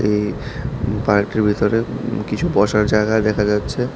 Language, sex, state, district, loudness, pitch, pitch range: Bengali, male, Tripura, South Tripura, -19 LUFS, 105 Hz, 105-110 Hz